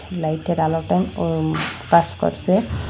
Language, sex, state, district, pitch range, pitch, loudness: Bengali, female, Assam, Hailakandi, 155-170 Hz, 160 Hz, -20 LUFS